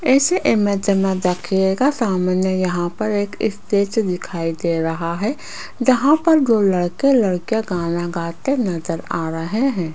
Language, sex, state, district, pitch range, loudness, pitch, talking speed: Hindi, female, Rajasthan, Jaipur, 175-225 Hz, -19 LUFS, 190 Hz, 145 wpm